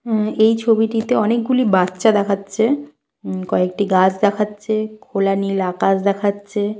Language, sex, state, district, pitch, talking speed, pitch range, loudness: Bengali, female, West Bengal, Purulia, 205 Hz, 125 wpm, 190-220 Hz, -18 LUFS